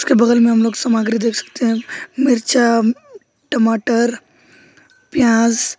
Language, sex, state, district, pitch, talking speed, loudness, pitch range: Hindi, male, West Bengal, Alipurduar, 235 Hz, 125 wpm, -16 LUFS, 230-255 Hz